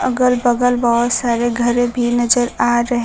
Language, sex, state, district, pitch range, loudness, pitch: Hindi, female, Bihar, Kaimur, 240-245 Hz, -16 LUFS, 240 Hz